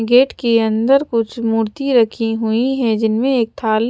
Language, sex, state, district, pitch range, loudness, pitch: Hindi, female, Chandigarh, Chandigarh, 225-250 Hz, -16 LUFS, 230 Hz